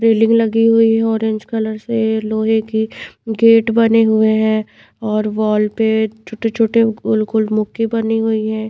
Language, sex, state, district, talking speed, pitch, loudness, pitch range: Hindi, female, Bihar, Patna, 160 wpm, 220 Hz, -15 LUFS, 220-225 Hz